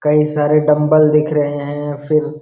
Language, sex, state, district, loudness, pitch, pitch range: Hindi, male, Bihar, Jamui, -15 LUFS, 150 Hz, 145-150 Hz